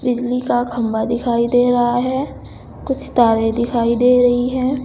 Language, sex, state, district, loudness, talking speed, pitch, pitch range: Hindi, female, Uttar Pradesh, Saharanpur, -17 LUFS, 160 wpm, 245 Hz, 235-250 Hz